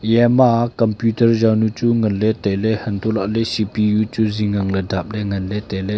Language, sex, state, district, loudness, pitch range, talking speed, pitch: Wancho, male, Arunachal Pradesh, Longding, -18 LUFS, 100-115 Hz, 140 wpm, 110 Hz